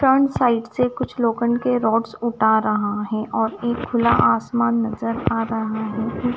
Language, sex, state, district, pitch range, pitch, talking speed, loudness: Hindi, female, Punjab, Kapurthala, 215-240 Hz, 225 Hz, 170 wpm, -20 LUFS